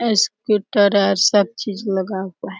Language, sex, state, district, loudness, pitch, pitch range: Hindi, female, Bihar, Araria, -18 LUFS, 200 Hz, 195-210 Hz